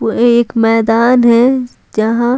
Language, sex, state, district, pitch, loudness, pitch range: Hindi, female, Bihar, Patna, 235 Hz, -11 LUFS, 225-240 Hz